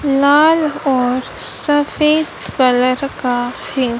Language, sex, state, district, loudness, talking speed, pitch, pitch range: Hindi, female, Madhya Pradesh, Dhar, -15 LUFS, 90 wpm, 275 Hz, 250-295 Hz